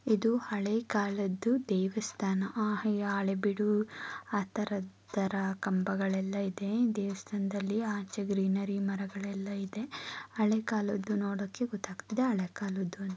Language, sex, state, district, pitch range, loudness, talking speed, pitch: Kannada, female, Karnataka, Mysore, 195-215 Hz, -33 LUFS, 110 wpm, 200 Hz